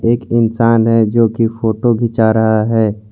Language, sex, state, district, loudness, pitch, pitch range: Hindi, male, Jharkhand, Garhwa, -13 LUFS, 115 Hz, 110-115 Hz